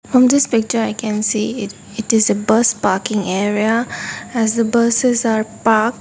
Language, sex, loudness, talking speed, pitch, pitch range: English, female, -16 LUFS, 180 wpm, 225 Hz, 215-235 Hz